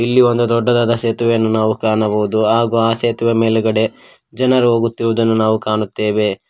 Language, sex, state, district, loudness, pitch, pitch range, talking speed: Kannada, male, Karnataka, Koppal, -15 LUFS, 115 Hz, 110-115 Hz, 120 wpm